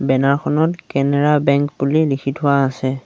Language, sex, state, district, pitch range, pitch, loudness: Assamese, male, Assam, Sonitpur, 135-150 Hz, 140 Hz, -17 LUFS